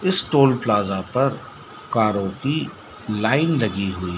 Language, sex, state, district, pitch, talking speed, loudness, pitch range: Hindi, male, Madhya Pradesh, Dhar, 110 Hz, 130 wpm, -21 LUFS, 100-140 Hz